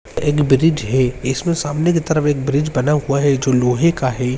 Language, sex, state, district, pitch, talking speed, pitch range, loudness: Hindi, male, Uttarakhand, Uttarkashi, 145 Hz, 220 wpm, 130-155 Hz, -17 LUFS